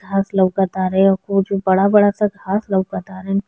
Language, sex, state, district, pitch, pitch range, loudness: Bhojpuri, female, Bihar, East Champaran, 195 Hz, 190-200 Hz, -17 LUFS